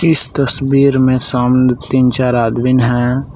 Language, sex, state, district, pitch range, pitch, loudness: Hindi, male, Jharkhand, Palamu, 125-135 Hz, 130 Hz, -12 LUFS